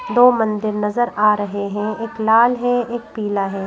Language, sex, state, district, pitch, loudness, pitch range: Hindi, female, Madhya Pradesh, Bhopal, 220 Hz, -18 LUFS, 205-240 Hz